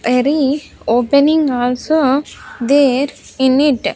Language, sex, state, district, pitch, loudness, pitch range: English, female, Andhra Pradesh, Sri Satya Sai, 275 Hz, -14 LUFS, 250-290 Hz